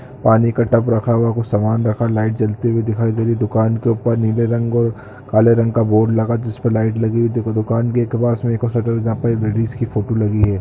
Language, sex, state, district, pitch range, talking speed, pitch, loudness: Hindi, male, Chhattisgarh, Korba, 110-115 Hz, 265 wpm, 115 Hz, -17 LUFS